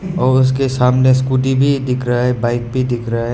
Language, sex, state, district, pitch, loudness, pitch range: Hindi, male, Meghalaya, West Garo Hills, 130 Hz, -15 LUFS, 120-130 Hz